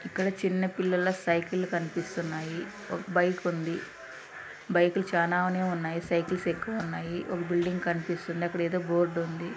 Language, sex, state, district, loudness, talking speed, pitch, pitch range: Telugu, female, Andhra Pradesh, Anantapur, -30 LUFS, 125 wpm, 175 Hz, 170-185 Hz